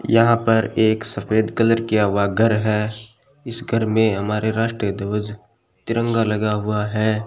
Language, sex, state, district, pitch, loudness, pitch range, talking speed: Hindi, male, Rajasthan, Bikaner, 110 Hz, -19 LUFS, 105-115 Hz, 155 wpm